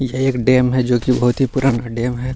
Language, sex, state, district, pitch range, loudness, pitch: Hindi, male, Bihar, Gaya, 120-130 Hz, -17 LUFS, 125 Hz